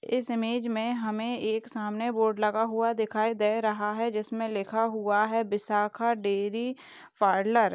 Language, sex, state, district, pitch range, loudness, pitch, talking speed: Hindi, female, Maharashtra, Aurangabad, 210-230 Hz, -28 LUFS, 220 Hz, 165 wpm